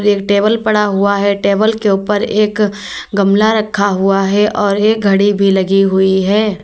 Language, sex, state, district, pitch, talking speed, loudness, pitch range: Hindi, female, Uttar Pradesh, Lalitpur, 205 Hz, 180 wpm, -13 LUFS, 195-210 Hz